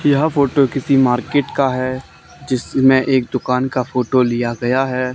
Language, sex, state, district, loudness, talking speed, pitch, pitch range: Hindi, male, Haryana, Charkhi Dadri, -17 LUFS, 165 wpm, 130 Hz, 125-135 Hz